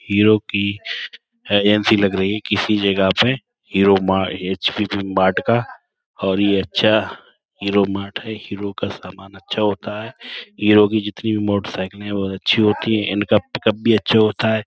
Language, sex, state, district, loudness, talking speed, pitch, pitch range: Hindi, male, Uttar Pradesh, Budaun, -18 LUFS, 165 wpm, 105 Hz, 100-110 Hz